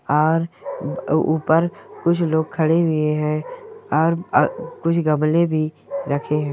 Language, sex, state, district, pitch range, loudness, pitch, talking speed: Hindi, female, Uttar Pradesh, Gorakhpur, 155-170 Hz, -20 LUFS, 160 Hz, 120 wpm